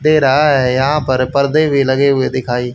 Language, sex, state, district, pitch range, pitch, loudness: Hindi, male, Haryana, Jhajjar, 130-145 Hz, 135 Hz, -13 LUFS